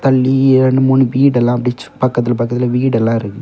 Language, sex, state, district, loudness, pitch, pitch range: Tamil, male, Tamil Nadu, Kanyakumari, -13 LUFS, 125 Hz, 120-130 Hz